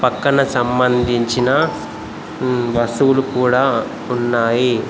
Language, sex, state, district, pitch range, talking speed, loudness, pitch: Telugu, male, Telangana, Komaram Bheem, 120-130 Hz, 60 wpm, -16 LUFS, 125 Hz